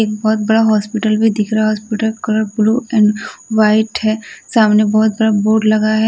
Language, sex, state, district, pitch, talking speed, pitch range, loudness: Hindi, female, Delhi, New Delhi, 215 Hz, 195 wpm, 215-220 Hz, -14 LUFS